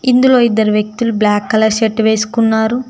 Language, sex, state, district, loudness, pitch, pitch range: Telugu, female, Telangana, Mahabubabad, -13 LUFS, 220 Hz, 220-235 Hz